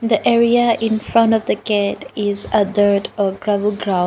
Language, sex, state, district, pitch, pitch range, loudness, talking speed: English, female, Nagaland, Dimapur, 210 Hz, 205-225 Hz, -17 LUFS, 190 wpm